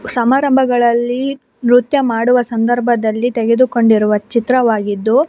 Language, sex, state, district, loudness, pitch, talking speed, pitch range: Kannada, female, Karnataka, Bangalore, -14 LUFS, 240 Hz, 90 wpm, 230-250 Hz